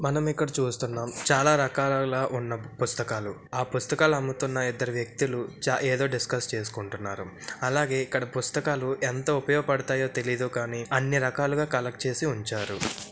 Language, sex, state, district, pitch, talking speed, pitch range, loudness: Telugu, male, Andhra Pradesh, Visakhapatnam, 130 Hz, 130 wpm, 120-140 Hz, -27 LUFS